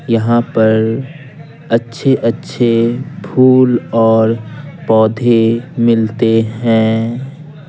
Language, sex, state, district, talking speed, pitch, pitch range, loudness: Hindi, male, Bihar, Patna, 60 wpm, 120 Hz, 115-135 Hz, -13 LUFS